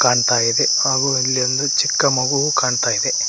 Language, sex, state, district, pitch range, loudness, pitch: Kannada, male, Karnataka, Koppal, 125-140 Hz, -16 LUFS, 130 Hz